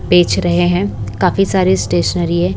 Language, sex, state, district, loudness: Hindi, female, Bihar, West Champaran, -14 LUFS